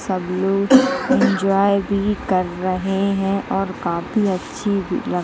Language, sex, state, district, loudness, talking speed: Hindi, male, Uttar Pradesh, Jalaun, -19 LUFS, 135 wpm